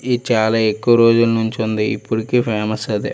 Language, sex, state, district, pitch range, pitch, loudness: Telugu, male, Andhra Pradesh, Srikakulam, 110-115 Hz, 110 Hz, -17 LUFS